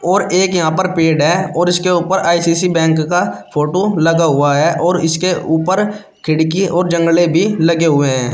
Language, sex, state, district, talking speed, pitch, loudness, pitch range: Hindi, male, Uttar Pradesh, Shamli, 185 wpm, 170 Hz, -14 LUFS, 160-180 Hz